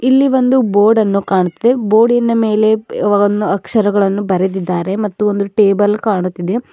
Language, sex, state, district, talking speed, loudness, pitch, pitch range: Kannada, female, Karnataka, Bidar, 125 wpm, -14 LUFS, 210 Hz, 195-225 Hz